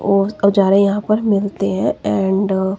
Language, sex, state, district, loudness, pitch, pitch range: Hindi, female, Himachal Pradesh, Shimla, -16 LUFS, 200 Hz, 195-200 Hz